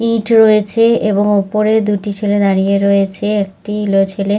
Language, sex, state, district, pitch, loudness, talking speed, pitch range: Bengali, female, West Bengal, Dakshin Dinajpur, 205 Hz, -13 LUFS, 150 wpm, 200-215 Hz